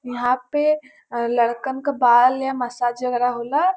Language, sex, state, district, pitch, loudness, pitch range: Bhojpuri, female, Uttar Pradesh, Varanasi, 250 Hz, -20 LUFS, 240-270 Hz